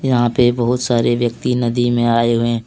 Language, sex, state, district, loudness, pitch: Hindi, male, Jharkhand, Deoghar, -16 LUFS, 120 Hz